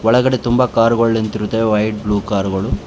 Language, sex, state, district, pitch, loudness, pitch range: Kannada, male, Karnataka, Bangalore, 110 Hz, -16 LUFS, 105-115 Hz